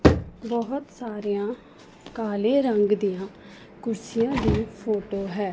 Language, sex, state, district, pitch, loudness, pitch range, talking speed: Punjabi, female, Punjab, Pathankot, 220 Hz, -26 LUFS, 205-235 Hz, 95 wpm